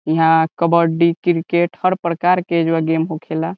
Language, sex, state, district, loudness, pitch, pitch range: Bhojpuri, male, Bihar, Saran, -17 LUFS, 170 Hz, 160-175 Hz